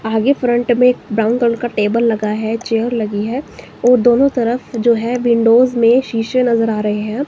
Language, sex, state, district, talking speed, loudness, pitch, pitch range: Hindi, female, Himachal Pradesh, Shimla, 200 wpm, -15 LUFS, 235 Hz, 225-245 Hz